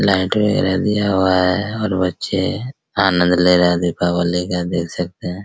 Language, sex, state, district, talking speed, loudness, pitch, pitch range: Hindi, male, Bihar, Araria, 175 wpm, -17 LUFS, 95 Hz, 90-100 Hz